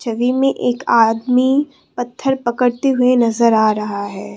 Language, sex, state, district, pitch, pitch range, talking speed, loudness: Hindi, female, Assam, Kamrup Metropolitan, 245 Hz, 225-255 Hz, 150 wpm, -16 LUFS